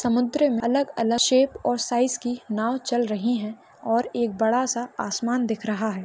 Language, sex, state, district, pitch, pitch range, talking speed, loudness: Hindi, female, Maharashtra, Pune, 240 Hz, 225-245 Hz, 170 wpm, -24 LUFS